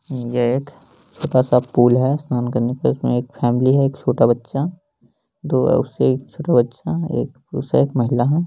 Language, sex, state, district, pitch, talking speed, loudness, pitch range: Hindi, male, Bihar, Lakhisarai, 130 Hz, 190 wpm, -19 LUFS, 120-145 Hz